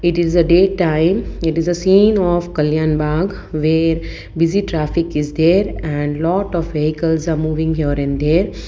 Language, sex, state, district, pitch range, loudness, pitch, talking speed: English, female, Gujarat, Valsad, 155-175 Hz, -16 LUFS, 165 Hz, 180 wpm